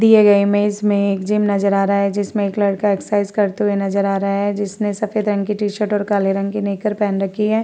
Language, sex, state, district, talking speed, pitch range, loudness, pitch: Hindi, female, Uttar Pradesh, Varanasi, 260 wpm, 200-210 Hz, -18 LUFS, 205 Hz